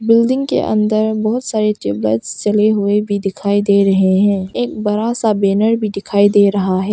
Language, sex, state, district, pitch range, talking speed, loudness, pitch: Hindi, female, Arunachal Pradesh, Papum Pare, 200-215 Hz, 190 wpm, -15 LUFS, 205 Hz